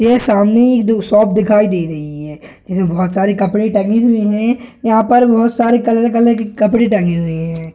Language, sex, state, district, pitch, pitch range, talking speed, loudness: Hindi, male, Bihar, Gaya, 215 Hz, 190-235 Hz, 195 wpm, -13 LUFS